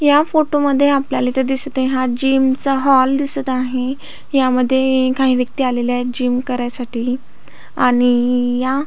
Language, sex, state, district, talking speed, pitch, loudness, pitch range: Marathi, female, Maharashtra, Aurangabad, 140 wpm, 260 Hz, -16 LUFS, 250-275 Hz